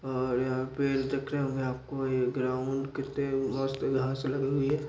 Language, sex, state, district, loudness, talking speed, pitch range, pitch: Hindi, male, Uttar Pradesh, Deoria, -31 LUFS, 145 wpm, 130-140 Hz, 135 Hz